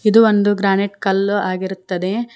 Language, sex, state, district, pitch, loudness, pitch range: Kannada, female, Karnataka, Koppal, 200 Hz, -17 LUFS, 190-210 Hz